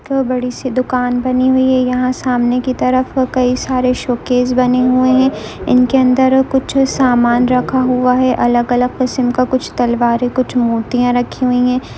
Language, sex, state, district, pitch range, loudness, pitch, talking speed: Hindi, female, Andhra Pradesh, Visakhapatnam, 245-255 Hz, -14 LUFS, 255 Hz, 170 wpm